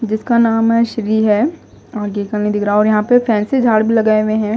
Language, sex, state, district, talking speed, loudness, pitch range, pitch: Hindi, female, Odisha, Malkangiri, 250 wpm, -14 LUFS, 210-230 Hz, 220 Hz